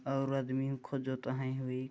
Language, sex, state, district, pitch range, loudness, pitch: Chhattisgarhi, male, Chhattisgarh, Jashpur, 130-135 Hz, -36 LUFS, 130 Hz